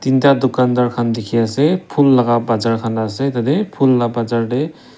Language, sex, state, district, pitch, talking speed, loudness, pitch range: Nagamese, male, Nagaland, Dimapur, 125 Hz, 180 wpm, -16 LUFS, 115-140 Hz